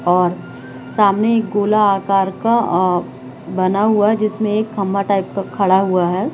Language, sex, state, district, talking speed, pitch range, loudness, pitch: Hindi, female, Chhattisgarh, Bilaspur, 170 wpm, 180-210 Hz, -16 LUFS, 195 Hz